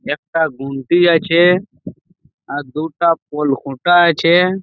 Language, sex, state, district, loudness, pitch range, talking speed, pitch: Bengali, male, West Bengal, Malda, -15 LUFS, 145-175 Hz, 105 wpm, 165 Hz